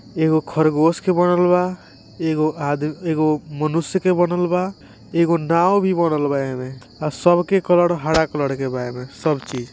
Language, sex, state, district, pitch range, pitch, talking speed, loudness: Hindi, male, Bihar, East Champaran, 145-175 Hz, 160 Hz, 160 wpm, -19 LUFS